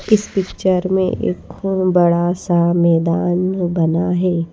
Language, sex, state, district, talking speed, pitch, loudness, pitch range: Hindi, female, Madhya Pradesh, Bhopal, 130 wpm, 175 Hz, -17 LUFS, 170-185 Hz